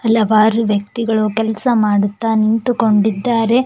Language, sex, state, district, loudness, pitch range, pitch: Kannada, female, Karnataka, Koppal, -15 LUFS, 215-230 Hz, 220 Hz